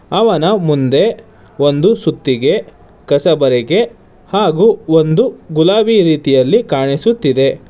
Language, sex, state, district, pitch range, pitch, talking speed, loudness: Kannada, male, Karnataka, Bangalore, 135-195 Hz, 155 Hz, 80 wpm, -13 LUFS